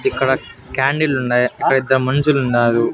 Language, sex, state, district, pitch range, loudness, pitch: Telugu, male, Andhra Pradesh, Annamaya, 125-140 Hz, -17 LUFS, 130 Hz